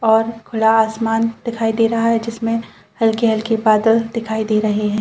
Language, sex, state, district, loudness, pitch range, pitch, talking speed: Hindi, female, Chhattisgarh, Bilaspur, -17 LUFS, 220-230 Hz, 225 Hz, 165 wpm